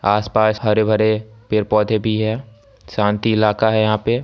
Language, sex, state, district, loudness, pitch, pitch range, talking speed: Maithili, male, Bihar, Samastipur, -17 LUFS, 110 Hz, 105-110 Hz, 140 wpm